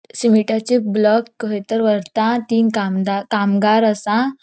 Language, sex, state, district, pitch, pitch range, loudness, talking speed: Konkani, female, Goa, North and South Goa, 220 Hz, 210-230 Hz, -17 LUFS, 110 wpm